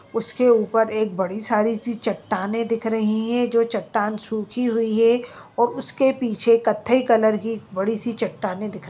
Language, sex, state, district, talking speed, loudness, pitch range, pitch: Hindi, female, Andhra Pradesh, Anantapur, 175 wpm, -22 LUFS, 215-235 Hz, 225 Hz